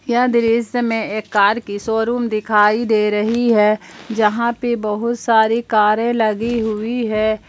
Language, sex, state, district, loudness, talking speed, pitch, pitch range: Hindi, female, Jharkhand, Palamu, -17 LUFS, 150 wpm, 225 Hz, 215-235 Hz